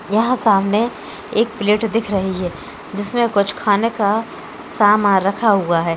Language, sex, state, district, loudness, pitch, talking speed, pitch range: Hindi, female, Uttar Pradesh, Hamirpur, -17 LUFS, 205 Hz, 150 wpm, 195-225 Hz